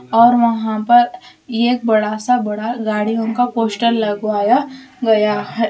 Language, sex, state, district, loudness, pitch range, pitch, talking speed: Hindi, female, Jharkhand, Sahebganj, -16 LUFS, 215-240 Hz, 230 Hz, 135 wpm